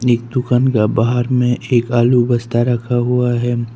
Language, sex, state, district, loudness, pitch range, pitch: Hindi, male, Arunachal Pradesh, Papum Pare, -15 LUFS, 120-125 Hz, 120 Hz